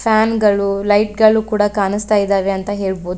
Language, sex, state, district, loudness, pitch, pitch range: Kannada, female, Karnataka, Koppal, -15 LUFS, 205 Hz, 195-215 Hz